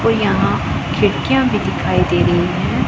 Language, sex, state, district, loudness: Hindi, female, Punjab, Pathankot, -16 LUFS